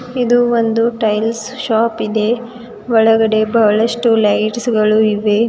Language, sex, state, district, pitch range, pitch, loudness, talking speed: Kannada, female, Karnataka, Bidar, 215-235 Hz, 225 Hz, -14 LUFS, 110 wpm